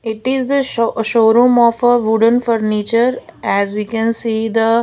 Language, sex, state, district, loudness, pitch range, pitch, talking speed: English, female, Maharashtra, Gondia, -15 LUFS, 225-240 Hz, 230 Hz, 185 wpm